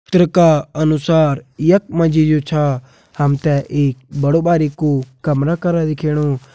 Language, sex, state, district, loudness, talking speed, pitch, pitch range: Hindi, male, Uttarakhand, Uttarkashi, -16 LUFS, 145 wpm, 150 Hz, 140-165 Hz